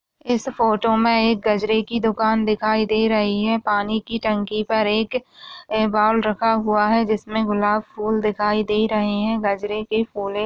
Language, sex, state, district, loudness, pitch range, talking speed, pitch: Hindi, female, Maharashtra, Solapur, -20 LUFS, 210-225 Hz, 170 wpm, 220 Hz